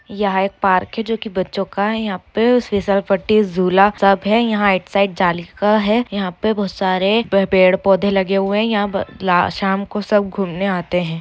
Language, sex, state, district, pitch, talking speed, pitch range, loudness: Hindi, female, Bihar, Lakhisarai, 195 Hz, 205 wpm, 190-210 Hz, -17 LUFS